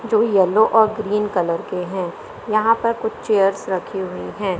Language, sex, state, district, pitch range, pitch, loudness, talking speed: Hindi, female, Madhya Pradesh, Katni, 185-220 Hz, 205 Hz, -19 LUFS, 170 wpm